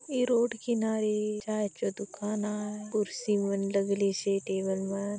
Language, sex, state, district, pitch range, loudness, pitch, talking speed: Hindi, female, Chhattisgarh, Bastar, 195-215 Hz, -30 LUFS, 210 Hz, 140 wpm